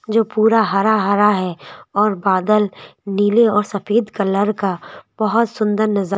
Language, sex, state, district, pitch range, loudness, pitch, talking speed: Hindi, female, Madhya Pradesh, Bhopal, 195-215 Hz, -17 LUFS, 210 Hz, 145 wpm